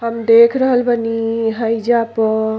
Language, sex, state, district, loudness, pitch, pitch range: Bhojpuri, female, Uttar Pradesh, Gorakhpur, -15 LUFS, 230 Hz, 225-235 Hz